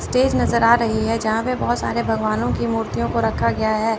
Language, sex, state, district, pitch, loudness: Hindi, female, Chandigarh, Chandigarh, 220 Hz, -19 LUFS